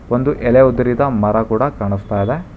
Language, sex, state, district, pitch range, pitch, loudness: Kannada, male, Karnataka, Bangalore, 105-130 Hz, 120 Hz, -15 LUFS